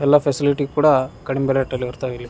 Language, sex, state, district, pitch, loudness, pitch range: Kannada, male, Karnataka, Raichur, 135 Hz, -19 LUFS, 130-145 Hz